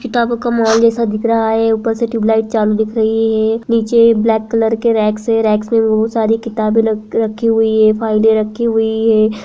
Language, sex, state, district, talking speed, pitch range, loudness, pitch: Hindi, female, Uttarakhand, Tehri Garhwal, 210 wpm, 220-230 Hz, -14 LUFS, 225 Hz